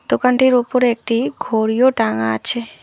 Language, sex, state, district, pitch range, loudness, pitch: Bengali, female, West Bengal, Alipurduar, 220-250 Hz, -16 LUFS, 235 Hz